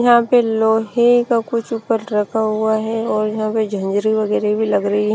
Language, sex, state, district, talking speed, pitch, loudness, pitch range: Hindi, female, Bihar, Kaimur, 210 wpm, 220 Hz, -17 LUFS, 215-230 Hz